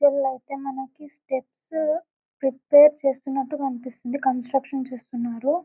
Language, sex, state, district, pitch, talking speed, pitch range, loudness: Telugu, female, Telangana, Karimnagar, 270 Hz, 85 wpm, 260-290 Hz, -24 LUFS